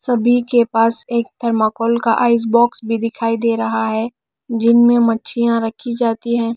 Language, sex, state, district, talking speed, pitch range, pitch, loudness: Hindi, female, Odisha, Nuapada, 165 wpm, 230-235 Hz, 230 Hz, -16 LUFS